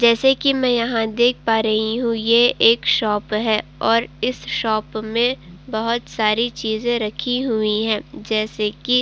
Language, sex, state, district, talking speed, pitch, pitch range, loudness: Hindi, female, Uttar Pradesh, Jalaun, 165 wpm, 230 Hz, 220-240 Hz, -19 LUFS